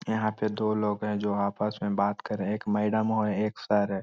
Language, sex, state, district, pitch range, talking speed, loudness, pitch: Magahi, male, Bihar, Lakhisarai, 105-110 Hz, 265 wpm, -28 LUFS, 105 Hz